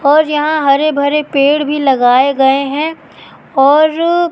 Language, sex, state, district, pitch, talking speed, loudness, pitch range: Hindi, female, Madhya Pradesh, Katni, 295 Hz, 140 wpm, -12 LUFS, 275-310 Hz